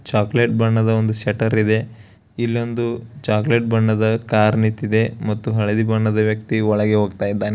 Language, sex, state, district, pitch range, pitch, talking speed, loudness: Kannada, male, Karnataka, Bellary, 105-115 Hz, 110 Hz, 145 wpm, -19 LUFS